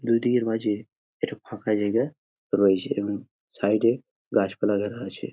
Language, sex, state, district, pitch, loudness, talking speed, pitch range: Bengali, male, West Bengal, Jhargram, 110 Hz, -26 LUFS, 145 wpm, 100-115 Hz